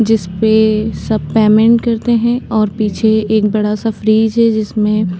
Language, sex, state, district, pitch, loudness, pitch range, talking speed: Hindi, female, Uttarakhand, Tehri Garhwal, 220 Hz, -13 LUFS, 215-225 Hz, 150 wpm